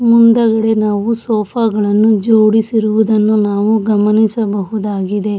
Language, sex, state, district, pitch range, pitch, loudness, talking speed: Kannada, female, Karnataka, Shimoga, 210-225 Hz, 215 Hz, -13 LUFS, 80 wpm